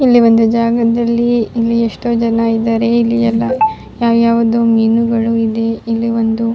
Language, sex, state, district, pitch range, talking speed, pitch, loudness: Kannada, female, Karnataka, Raichur, 230-235 Hz, 145 wpm, 230 Hz, -13 LUFS